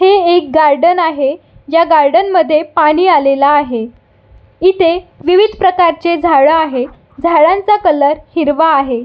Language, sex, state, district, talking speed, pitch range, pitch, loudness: Marathi, female, Maharashtra, Solapur, 125 wpm, 290-350 Hz, 325 Hz, -11 LUFS